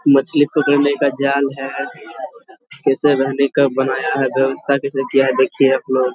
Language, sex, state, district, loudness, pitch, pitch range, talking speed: Hindi, male, Jharkhand, Sahebganj, -16 LUFS, 135 Hz, 135-140 Hz, 155 wpm